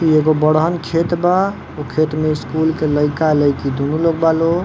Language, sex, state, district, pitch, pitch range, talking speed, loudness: Bhojpuri, male, Uttar Pradesh, Varanasi, 155 Hz, 150-165 Hz, 195 wpm, -16 LUFS